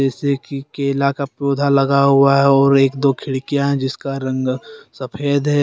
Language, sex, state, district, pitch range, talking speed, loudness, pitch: Hindi, male, Jharkhand, Deoghar, 135-140 Hz, 180 wpm, -17 LUFS, 140 Hz